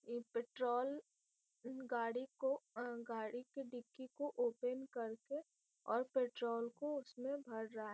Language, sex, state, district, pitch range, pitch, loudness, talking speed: Hindi, female, Bihar, Gopalganj, 235-265 Hz, 245 Hz, -44 LUFS, 145 wpm